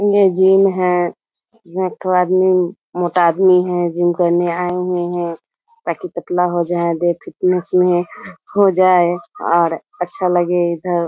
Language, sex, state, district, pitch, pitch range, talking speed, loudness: Hindi, female, Bihar, Muzaffarpur, 180 Hz, 175-185 Hz, 125 wpm, -16 LUFS